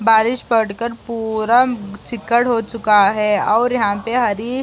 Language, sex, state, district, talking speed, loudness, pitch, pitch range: Hindi, female, Bihar, Gopalganj, 155 wpm, -17 LUFS, 225 Hz, 210-240 Hz